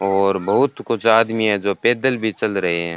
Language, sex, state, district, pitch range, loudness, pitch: Hindi, male, Rajasthan, Bikaner, 100-115 Hz, -18 LUFS, 110 Hz